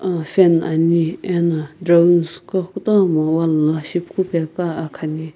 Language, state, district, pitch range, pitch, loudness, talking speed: Sumi, Nagaland, Kohima, 160-180 Hz, 170 Hz, -18 LUFS, 125 wpm